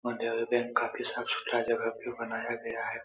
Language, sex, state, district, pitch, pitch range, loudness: Hindi, male, Uttar Pradesh, Etah, 115 Hz, 115-120 Hz, -32 LUFS